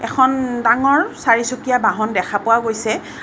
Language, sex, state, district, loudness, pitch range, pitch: Assamese, female, Assam, Kamrup Metropolitan, -17 LUFS, 220-255 Hz, 230 Hz